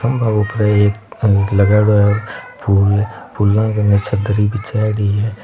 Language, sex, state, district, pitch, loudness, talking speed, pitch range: Marwari, male, Rajasthan, Nagaur, 105 Hz, -15 LUFS, 145 wpm, 100-110 Hz